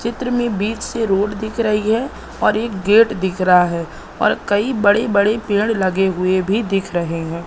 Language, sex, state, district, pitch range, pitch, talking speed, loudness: Hindi, male, Madhya Pradesh, Katni, 190-225 Hz, 205 Hz, 200 wpm, -17 LUFS